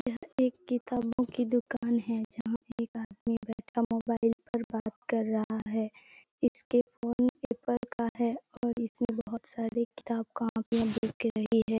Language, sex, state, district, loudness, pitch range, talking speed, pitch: Hindi, female, Bihar, Purnia, -32 LUFS, 225-245 Hz, 170 wpm, 235 Hz